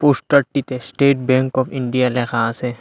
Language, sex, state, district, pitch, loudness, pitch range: Bengali, male, Assam, Hailakandi, 130 Hz, -18 LUFS, 125-140 Hz